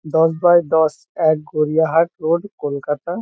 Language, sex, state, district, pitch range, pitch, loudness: Bengali, male, West Bengal, Kolkata, 155-170 Hz, 160 Hz, -18 LUFS